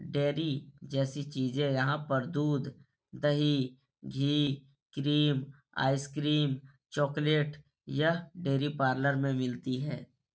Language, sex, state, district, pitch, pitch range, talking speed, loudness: Hindi, male, Bihar, Supaul, 140 Hz, 135-150 Hz, 100 wpm, -31 LUFS